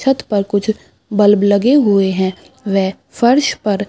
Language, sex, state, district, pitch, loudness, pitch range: Hindi, female, Uttar Pradesh, Budaun, 205 Hz, -14 LUFS, 195-240 Hz